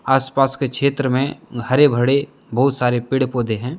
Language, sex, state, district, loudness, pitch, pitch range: Hindi, male, Jharkhand, Deoghar, -18 LUFS, 135 Hz, 125-140 Hz